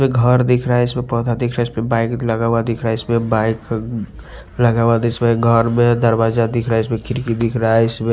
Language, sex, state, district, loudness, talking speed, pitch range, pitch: Hindi, male, Bihar, West Champaran, -17 LUFS, 245 wpm, 115-120 Hz, 115 Hz